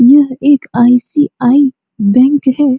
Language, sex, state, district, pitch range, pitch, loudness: Hindi, female, Bihar, Supaul, 245-285 Hz, 260 Hz, -11 LUFS